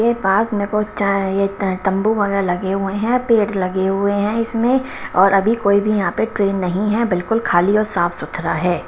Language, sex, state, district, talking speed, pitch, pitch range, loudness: Hindi, female, Himachal Pradesh, Shimla, 200 wpm, 200 Hz, 195-215 Hz, -18 LUFS